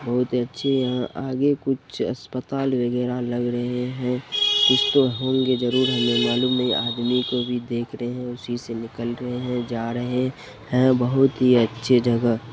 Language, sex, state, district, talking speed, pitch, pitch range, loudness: Hindi, male, Bihar, Purnia, 170 wpm, 125 Hz, 120-130 Hz, -22 LUFS